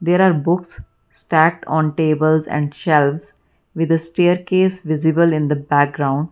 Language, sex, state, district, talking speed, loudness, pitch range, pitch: English, female, Karnataka, Bangalore, 140 wpm, -17 LUFS, 150-175 Hz, 160 Hz